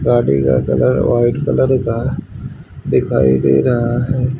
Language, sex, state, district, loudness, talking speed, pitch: Hindi, male, Haryana, Rohtak, -15 LUFS, 135 wpm, 120 Hz